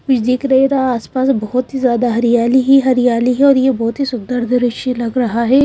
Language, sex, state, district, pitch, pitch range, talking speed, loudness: Hindi, female, Madhya Pradesh, Bhopal, 250 Hz, 240-265 Hz, 210 wpm, -14 LUFS